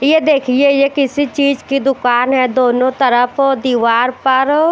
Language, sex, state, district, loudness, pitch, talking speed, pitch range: Hindi, female, Bihar, West Champaran, -13 LUFS, 265 Hz, 150 wpm, 250-280 Hz